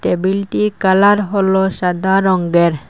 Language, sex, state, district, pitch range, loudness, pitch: Bengali, female, Assam, Hailakandi, 180-200 Hz, -14 LUFS, 190 Hz